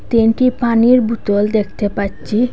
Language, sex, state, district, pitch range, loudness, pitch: Bengali, female, Assam, Hailakandi, 205-240 Hz, -15 LUFS, 225 Hz